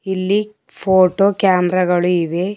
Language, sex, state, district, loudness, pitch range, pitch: Kannada, female, Karnataka, Bidar, -16 LUFS, 180-195 Hz, 185 Hz